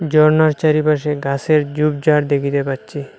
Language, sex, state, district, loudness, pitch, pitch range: Bengali, male, Assam, Hailakandi, -16 LUFS, 150 Hz, 140-155 Hz